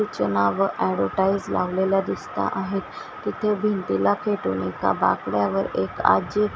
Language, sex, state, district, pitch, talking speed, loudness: Marathi, female, Maharashtra, Washim, 195 Hz, 130 wpm, -23 LUFS